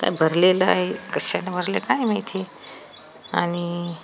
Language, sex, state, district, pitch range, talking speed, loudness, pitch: Marathi, female, Maharashtra, Washim, 165-190 Hz, 120 wpm, -22 LUFS, 175 Hz